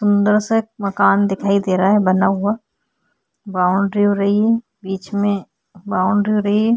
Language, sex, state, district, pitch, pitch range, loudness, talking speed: Hindi, female, Uttarakhand, Tehri Garhwal, 200 Hz, 195-210 Hz, -17 LUFS, 175 wpm